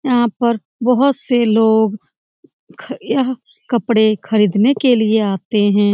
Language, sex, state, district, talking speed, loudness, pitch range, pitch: Hindi, female, Bihar, Jamui, 140 wpm, -15 LUFS, 215-250 Hz, 230 Hz